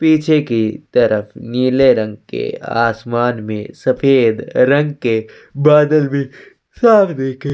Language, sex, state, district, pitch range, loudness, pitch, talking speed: Hindi, male, Chhattisgarh, Sukma, 115-150 Hz, -15 LUFS, 130 Hz, 125 wpm